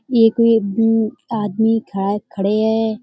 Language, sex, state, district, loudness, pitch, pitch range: Hindi, female, Uttar Pradesh, Budaun, -17 LUFS, 220 Hz, 210-225 Hz